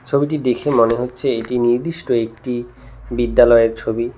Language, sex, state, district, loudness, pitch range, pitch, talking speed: Bengali, male, West Bengal, Cooch Behar, -17 LUFS, 115-125 Hz, 120 Hz, 130 wpm